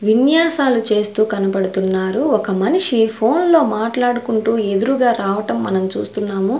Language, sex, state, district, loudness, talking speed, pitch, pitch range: Telugu, female, Andhra Pradesh, Sri Satya Sai, -16 LUFS, 100 wpm, 220 Hz, 195-245 Hz